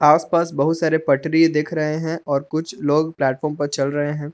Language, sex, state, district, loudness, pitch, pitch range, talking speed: Hindi, male, Jharkhand, Palamu, -20 LUFS, 150 Hz, 145-160 Hz, 205 wpm